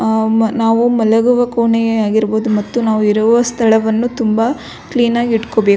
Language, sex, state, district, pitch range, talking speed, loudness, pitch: Kannada, female, Karnataka, Belgaum, 220-235 Hz, 135 wpm, -14 LUFS, 225 Hz